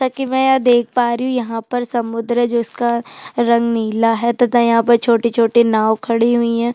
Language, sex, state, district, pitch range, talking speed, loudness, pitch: Hindi, female, Chhattisgarh, Sukma, 230-245 Hz, 175 wpm, -16 LUFS, 235 Hz